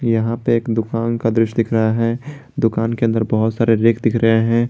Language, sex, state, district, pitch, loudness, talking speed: Hindi, male, Jharkhand, Garhwa, 115 Hz, -17 LUFS, 230 wpm